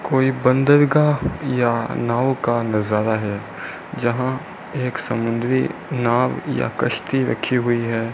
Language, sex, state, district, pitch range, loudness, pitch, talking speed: Hindi, male, Rajasthan, Bikaner, 115-130 Hz, -20 LUFS, 125 Hz, 120 wpm